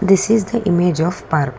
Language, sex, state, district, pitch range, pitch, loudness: English, female, Karnataka, Bangalore, 160-200 Hz, 180 Hz, -17 LUFS